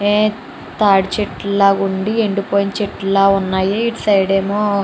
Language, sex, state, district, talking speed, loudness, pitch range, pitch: Telugu, female, Andhra Pradesh, Chittoor, 150 wpm, -16 LUFS, 195-210 Hz, 200 Hz